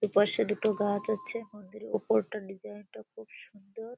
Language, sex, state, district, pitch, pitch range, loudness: Bengali, female, West Bengal, Kolkata, 205 Hz, 185-215 Hz, -30 LUFS